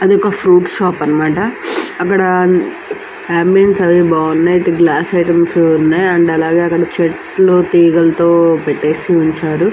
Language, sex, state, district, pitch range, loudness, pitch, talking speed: Telugu, male, Andhra Pradesh, Anantapur, 165-185 Hz, -12 LUFS, 175 Hz, 130 wpm